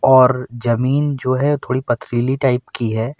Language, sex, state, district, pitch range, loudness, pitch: Hindi, male, Uttar Pradesh, Lucknow, 120-135 Hz, -18 LUFS, 130 Hz